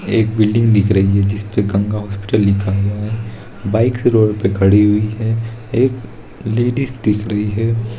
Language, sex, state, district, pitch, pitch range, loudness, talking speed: Hindi, male, Bihar, Saharsa, 105 Hz, 100-115 Hz, -16 LUFS, 175 wpm